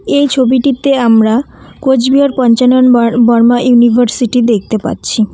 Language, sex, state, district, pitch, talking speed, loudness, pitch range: Bengali, female, West Bengal, Cooch Behar, 245 Hz, 100 wpm, -10 LUFS, 235-265 Hz